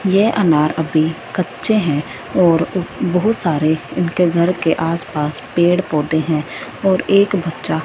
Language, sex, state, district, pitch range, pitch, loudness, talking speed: Hindi, female, Punjab, Fazilka, 160-185 Hz, 170 Hz, -17 LUFS, 145 wpm